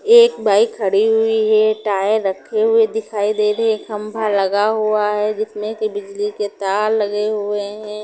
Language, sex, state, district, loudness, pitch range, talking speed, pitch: Hindi, female, Punjab, Pathankot, -17 LUFS, 205-220 Hz, 180 wpm, 210 Hz